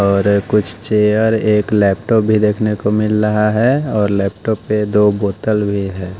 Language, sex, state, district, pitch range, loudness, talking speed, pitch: Hindi, male, Odisha, Nuapada, 100-110 Hz, -15 LUFS, 175 wpm, 105 Hz